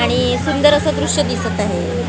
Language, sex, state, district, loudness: Marathi, female, Maharashtra, Gondia, -16 LUFS